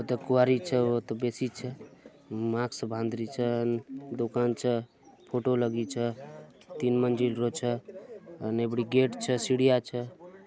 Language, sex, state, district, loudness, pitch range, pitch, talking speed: Halbi, male, Chhattisgarh, Bastar, -29 LUFS, 115-125 Hz, 120 Hz, 115 wpm